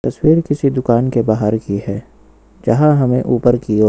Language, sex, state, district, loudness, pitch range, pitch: Hindi, male, Uttar Pradesh, Lucknow, -15 LUFS, 110-135 Hz, 120 Hz